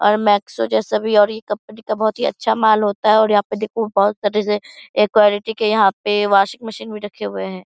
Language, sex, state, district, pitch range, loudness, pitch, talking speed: Hindi, female, Bihar, Purnia, 205-220 Hz, -17 LUFS, 210 Hz, 240 wpm